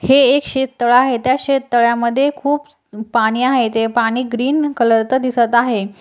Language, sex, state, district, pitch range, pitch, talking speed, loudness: Marathi, female, Maharashtra, Aurangabad, 235-270 Hz, 245 Hz, 160 wpm, -15 LUFS